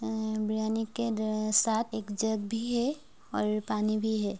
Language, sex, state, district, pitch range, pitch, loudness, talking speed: Hindi, female, Rajasthan, Churu, 215-225 Hz, 220 Hz, -30 LUFS, 150 wpm